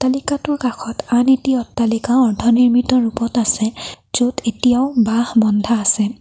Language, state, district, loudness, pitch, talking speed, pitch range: Assamese, Assam, Kamrup Metropolitan, -16 LUFS, 240 Hz, 125 wpm, 230-255 Hz